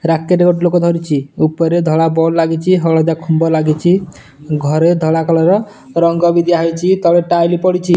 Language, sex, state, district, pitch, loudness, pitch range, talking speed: Odia, male, Odisha, Nuapada, 165 Hz, -13 LUFS, 160-175 Hz, 165 wpm